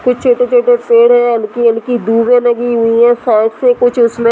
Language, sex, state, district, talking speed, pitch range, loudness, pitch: Hindi, female, Bihar, Muzaffarpur, 195 wpm, 230-250 Hz, -10 LUFS, 240 Hz